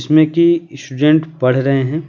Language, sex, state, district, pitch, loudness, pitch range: Hindi, male, Bihar, Patna, 155 Hz, -14 LUFS, 135-160 Hz